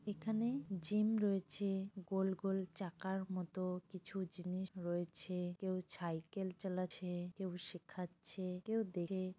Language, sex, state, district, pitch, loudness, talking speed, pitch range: Bengali, female, West Bengal, Kolkata, 185 Hz, -42 LUFS, 110 wpm, 180-195 Hz